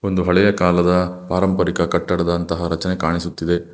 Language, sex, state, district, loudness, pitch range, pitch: Kannada, male, Karnataka, Bangalore, -18 LUFS, 85-90 Hz, 90 Hz